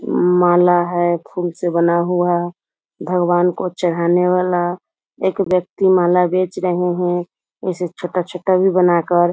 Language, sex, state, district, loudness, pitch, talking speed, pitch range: Hindi, female, Bihar, Muzaffarpur, -17 LUFS, 180 Hz, 135 wpm, 175-180 Hz